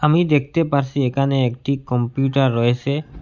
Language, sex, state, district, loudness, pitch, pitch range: Bengali, male, Assam, Hailakandi, -19 LUFS, 140 Hz, 130-145 Hz